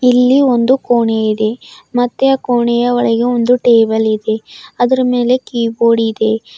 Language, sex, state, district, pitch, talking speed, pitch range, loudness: Kannada, female, Karnataka, Bidar, 240 Hz, 125 wpm, 225-250 Hz, -13 LUFS